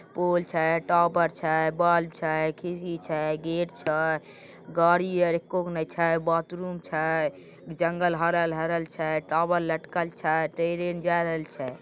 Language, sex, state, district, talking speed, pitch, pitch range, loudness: Maithili, male, Bihar, Begusarai, 135 wpm, 165 Hz, 160-175 Hz, -26 LUFS